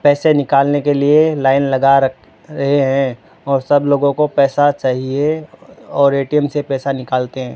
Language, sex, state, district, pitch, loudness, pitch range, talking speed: Hindi, male, Rajasthan, Bikaner, 140 Hz, -15 LUFS, 135-145 Hz, 160 wpm